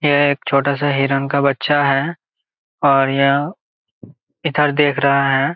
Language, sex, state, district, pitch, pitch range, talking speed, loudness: Hindi, male, Jharkhand, Jamtara, 140 Hz, 135-145 Hz, 150 wpm, -16 LUFS